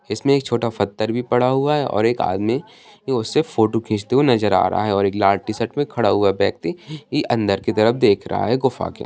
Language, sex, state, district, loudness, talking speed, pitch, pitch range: Hindi, male, Bihar, Bhagalpur, -19 LUFS, 230 wpm, 115 Hz, 105-130 Hz